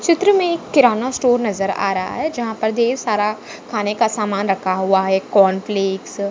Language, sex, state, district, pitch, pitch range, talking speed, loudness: Hindi, female, Maharashtra, Dhule, 210 Hz, 195-245 Hz, 190 wpm, -18 LUFS